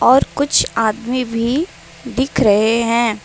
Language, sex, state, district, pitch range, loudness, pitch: Hindi, female, Karnataka, Bangalore, 225-260 Hz, -16 LUFS, 235 Hz